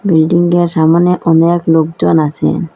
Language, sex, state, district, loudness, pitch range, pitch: Bengali, female, Assam, Hailakandi, -11 LUFS, 160-175 Hz, 165 Hz